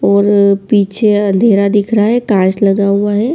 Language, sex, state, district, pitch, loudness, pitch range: Hindi, male, Bihar, Kishanganj, 205 Hz, -11 LUFS, 200-210 Hz